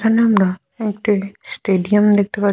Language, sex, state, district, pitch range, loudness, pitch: Bengali, female, West Bengal, Jalpaiguri, 195-215 Hz, -17 LUFS, 205 Hz